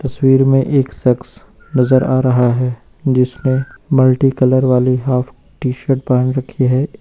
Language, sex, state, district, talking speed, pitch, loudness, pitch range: Hindi, male, Uttar Pradesh, Lucknow, 155 wpm, 130 Hz, -15 LUFS, 125-135 Hz